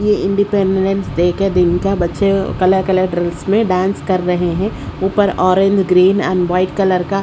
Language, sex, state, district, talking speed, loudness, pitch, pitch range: Hindi, female, Odisha, Sambalpur, 185 wpm, -15 LUFS, 190 Hz, 180-195 Hz